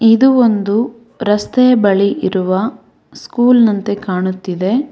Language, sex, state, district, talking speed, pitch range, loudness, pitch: Kannada, female, Karnataka, Bangalore, 95 wpm, 195-240 Hz, -14 LUFS, 210 Hz